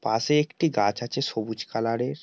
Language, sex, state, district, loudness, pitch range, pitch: Bengali, male, West Bengal, Paschim Medinipur, -26 LUFS, 110-145 Hz, 120 Hz